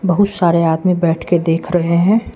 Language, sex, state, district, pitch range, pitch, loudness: Hindi, male, Arunachal Pradesh, Lower Dibang Valley, 165-185 Hz, 175 Hz, -15 LUFS